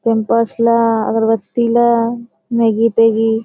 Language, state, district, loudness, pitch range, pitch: Surjapuri, Bihar, Kishanganj, -14 LUFS, 225-235 Hz, 230 Hz